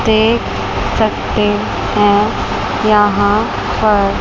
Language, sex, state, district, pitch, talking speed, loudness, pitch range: Hindi, female, Chandigarh, Chandigarh, 210 Hz, 70 wpm, -14 LUFS, 205-215 Hz